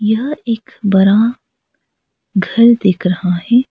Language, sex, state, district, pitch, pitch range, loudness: Hindi, female, Arunachal Pradesh, Lower Dibang Valley, 220 Hz, 190-235 Hz, -14 LUFS